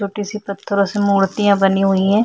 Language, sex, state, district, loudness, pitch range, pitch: Hindi, female, Chhattisgarh, Kabirdham, -17 LUFS, 195-205 Hz, 200 Hz